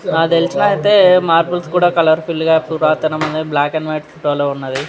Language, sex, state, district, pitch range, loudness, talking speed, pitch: Telugu, male, Telangana, Nalgonda, 155-170 Hz, -14 LUFS, 120 wpm, 160 Hz